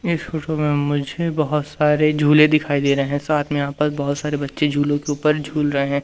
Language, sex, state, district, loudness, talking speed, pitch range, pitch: Hindi, male, Madhya Pradesh, Umaria, -19 LUFS, 240 wpm, 145-150 Hz, 150 Hz